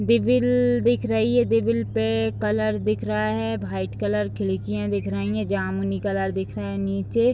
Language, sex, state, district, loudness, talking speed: Hindi, female, Bihar, Vaishali, -23 LUFS, 180 wpm